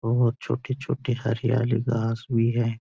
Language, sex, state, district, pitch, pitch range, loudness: Hindi, male, Uttarakhand, Uttarkashi, 120 Hz, 115-125 Hz, -25 LUFS